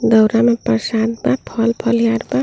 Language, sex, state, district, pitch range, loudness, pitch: Bhojpuri, female, Uttar Pradesh, Ghazipur, 225-235 Hz, -16 LUFS, 230 Hz